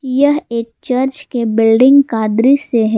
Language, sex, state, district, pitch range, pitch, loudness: Hindi, female, Jharkhand, Garhwa, 225-275 Hz, 250 Hz, -13 LUFS